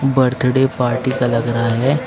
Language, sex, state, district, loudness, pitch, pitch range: Hindi, female, Uttar Pradesh, Lucknow, -17 LUFS, 130 Hz, 120-135 Hz